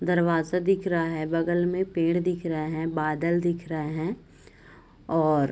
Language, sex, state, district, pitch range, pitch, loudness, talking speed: Hindi, female, Bihar, Gopalganj, 160-175 Hz, 165 Hz, -26 LUFS, 175 wpm